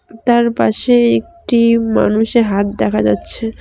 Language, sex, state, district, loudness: Bengali, female, West Bengal, Cooch Behar, -14 LUFS